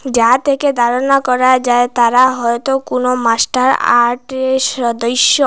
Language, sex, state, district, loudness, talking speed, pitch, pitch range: Bengali, female, Assam, Hailakandi, -13 LUFS, 120 wpm, 250 Hz, 240-260 Hz